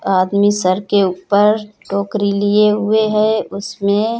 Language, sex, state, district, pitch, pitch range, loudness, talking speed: Hindi, female, Uttar Pradesh, Hamirpur, 205 Hz, 200-210 Hz, -15 LUFS, 140 wpm